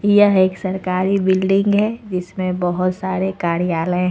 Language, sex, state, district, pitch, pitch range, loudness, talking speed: Hindi, female, Jharkhand, Ranchi, 185 Hz, 180-195 Hz, -18 LUFS, 145 wpm